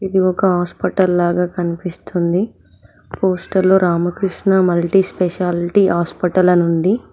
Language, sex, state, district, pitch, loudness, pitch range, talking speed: Telugu, female, Telangana, Mahabubabad, 180 Hz, -16 LUFS, 170-190 Hz, 100 wpm